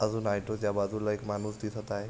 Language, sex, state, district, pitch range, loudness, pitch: Marathi, male, Maharashtra, Sindhudurg, 105-110 Hz, -32 LUFS, 105 Hz